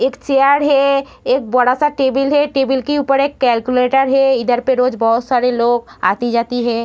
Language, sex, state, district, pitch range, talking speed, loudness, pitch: Hindi, female, Bihar, Darbhanga, 245-275 Hz, 195 wpm, -15 LUFS, 260 Hz